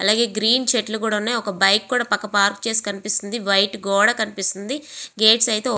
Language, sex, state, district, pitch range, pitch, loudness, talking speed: Telugu, female, Andhra Pradesh, Visakhapatnam, 200-235 Hz, 215 Hz, -19 LUFS, 195 wpm